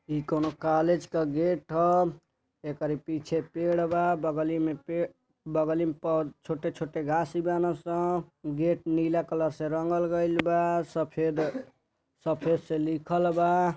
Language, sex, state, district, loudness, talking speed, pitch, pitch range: Bhojpuri, male, Uttar Pradesh, Deoria, -28 LUFS, 140 wpm, 160 Hz, 155-170 Hz